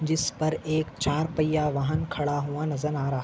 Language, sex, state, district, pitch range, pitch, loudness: Hindi, male, Maharashtra, Nagpur, 145-155 Hz, 155 Hz, -27 LUFS